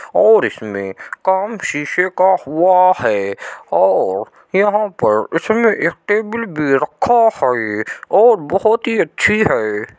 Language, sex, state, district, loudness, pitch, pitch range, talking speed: Hindi, male, Uttar Pradesh, Jyotiba Phule Nagar, -15 LUFS, 190 Hz, 135-215 Hz, 125 wpm